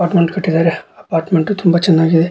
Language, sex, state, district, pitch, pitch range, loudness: Kannada, male, Karnataka, Dharwad, 170 Hz, 165-175 Hz, -14 LUFS